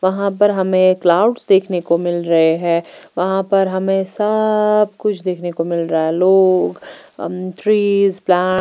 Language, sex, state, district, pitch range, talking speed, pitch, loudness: Hindi, female, Bihar, Patna, 175-200 Hz, 160 wpm, 185 Hz, -16 LUFS